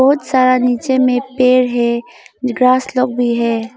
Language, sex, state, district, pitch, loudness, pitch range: Hindi, female, Arunachal Pradesh, Longding, 255 Hz, -14 LUFS, 245-255 Hz